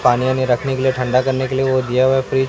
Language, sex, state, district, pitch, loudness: Hindi, male, Chhattisgarh, Raipur, 130 Hz, -17 LUFS